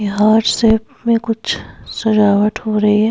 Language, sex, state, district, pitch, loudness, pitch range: Hindi, female, Uttar Pradesh, Hamirpur, 220 Hz, -15 LUFS, 210-225 Hz